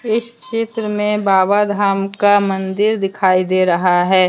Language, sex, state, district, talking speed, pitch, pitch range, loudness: Hindi, female, Jharkhand, Deoghar, 155 wpm, 200 Hz, 190-210 Hz, -16 LUFS